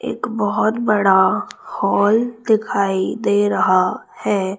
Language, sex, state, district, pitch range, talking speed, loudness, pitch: Hindi, female, Chhattisgarh, Raipur, 190-215 Hz, 105 wpm, -18 LUFS, 205 Hz